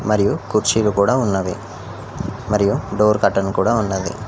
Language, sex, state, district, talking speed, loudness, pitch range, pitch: Telugu, male, Telangana, Mahabubabad, 125 wpm, -18 LUFS, 95-110 Hz, 100 Hz